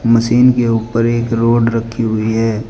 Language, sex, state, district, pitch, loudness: Hindi, male, Uttar Pradesh, Shamli, 115 Hz, -14 LUFS